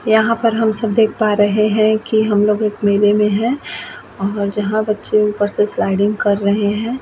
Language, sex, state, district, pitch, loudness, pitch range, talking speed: Hindi, female, Bihar, Vaishali, 210 Hz, -16 LUFS, 205-220 Hz, 205 wpm